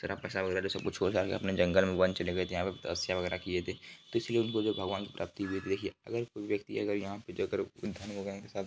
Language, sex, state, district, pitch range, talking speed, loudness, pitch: Hindi, male, Bihar, Jamui, 95-100 Hz, 250 wpm, -34 LUFS, 95 Hz